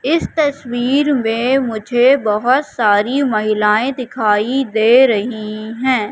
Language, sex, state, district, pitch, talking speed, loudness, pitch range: Hindi, female, Madhya Pradesh, Katni, 240 Hz, 110 wpm, -15 LUFS, 215-265 Hz